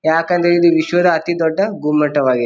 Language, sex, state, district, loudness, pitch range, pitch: Kannada, male, Karnataka, Bijapur, -15 LUFS, 150-175 Hz, 165 Hz